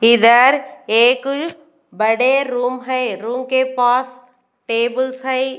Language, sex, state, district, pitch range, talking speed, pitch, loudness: Hindi, female, Bihar, Katihar, 240-260 Hz, 105 wpm, 250 Hz, -16 LUFS